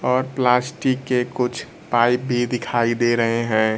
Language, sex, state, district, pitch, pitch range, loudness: Hindi, male, Bihar, Kaimur, 125 Hz, 120-125 Hz, -20 LUFS